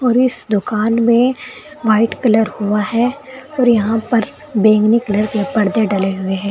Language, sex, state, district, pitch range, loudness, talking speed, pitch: Hindi, female, Uttar Pradesh, Saharanpur, 210-245 Hz, -15 LUFS, 165 wpm, 225 Hz